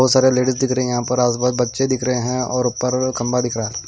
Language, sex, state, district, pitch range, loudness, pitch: Hindi, male, Himachal Pradesh, Shimla, 120-130 Hz, -19 LUFS, 125 Hz